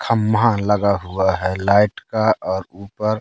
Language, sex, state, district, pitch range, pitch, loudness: Hindi, male, Madhya Pradesh, Katni, 95-110 Hz, 100 Hz, -18 LUFS